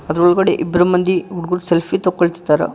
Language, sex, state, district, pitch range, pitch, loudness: Kannada, male, Karnataka, Koppal, 170-180 Hz, 175 Hz, -16 LUFS